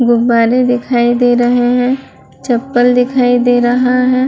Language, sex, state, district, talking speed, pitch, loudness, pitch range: Hindi, female, Bihar, Madhepura, 140 wpm, 245 Hz, -12 LUFS, 240-250 Hz